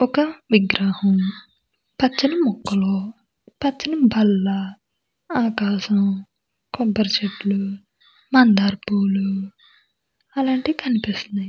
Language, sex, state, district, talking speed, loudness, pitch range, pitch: Telugu, female, Andhra Pradesh, Krishna, 75 wpm, -20 LUFS, 195-255 Hz, 210 Hz